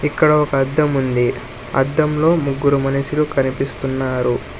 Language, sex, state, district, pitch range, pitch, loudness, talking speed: Telugu, male, Telangana, Hyderabad, 130-150 Hz, 135 Hz, -17 LUFS, 105 wpm